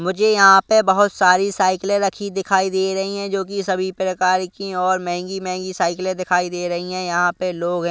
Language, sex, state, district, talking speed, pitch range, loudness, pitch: Hindi, male, Punjab, Kapurthala, 210 wpm, 180-195 Hz, -18 LUFS, 185 Hz